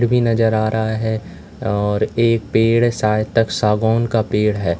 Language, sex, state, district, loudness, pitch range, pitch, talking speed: Hindi, male, Uttar Pradesh, Lalitpur, -17 LUFS, 105-115 Hz, 110 Hz, 160 wpm